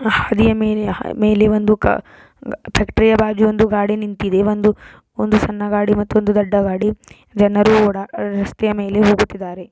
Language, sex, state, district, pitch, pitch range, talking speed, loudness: Kannada, female, Karnataka, Belgaum, 210 Hz, 205-215 Hz, 125 wpm, -16 LUFS